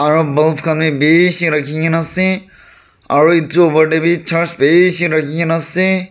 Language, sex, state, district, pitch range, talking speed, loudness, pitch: Nagamese, male, Nagaland, Dimapur, 155-175 Hz, 175 wpm, -13 LUFS, 165 Hz